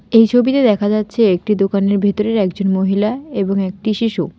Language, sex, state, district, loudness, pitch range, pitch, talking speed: Bengali, female, West Bengal, Alipurduar, -16 LUFS, 195-225 Hz, 205 Hz, 165 wpm